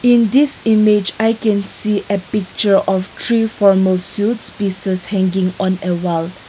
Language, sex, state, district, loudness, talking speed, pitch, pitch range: English, female, Nagaland, Kohima, -16 LUFS, 155 wpm, 200 Hz, 185-220 Hz